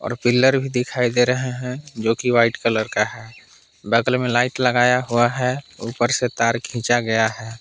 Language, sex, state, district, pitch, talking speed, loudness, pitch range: Hindi, male, Jharkhand, Palamu, 120 Hz, 190 wpm, -20 LUFS, 115-125 Hz